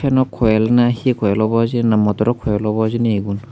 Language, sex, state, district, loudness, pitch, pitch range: Chakma, male, Tripura, Dhalai, -16 LUFS, 115 Hz, 105-120 Hz